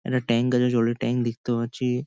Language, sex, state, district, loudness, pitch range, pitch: Bengali, male, West Bengal, Kolkata, -24 LUFS, 115-125 Hz, 120 Hz